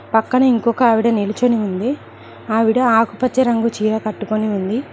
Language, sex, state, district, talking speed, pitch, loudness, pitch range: Telugu, female, Telangana, Mahabubabad, 120 wpm, 225 Hz, -17 LUFS, 215-245 Hz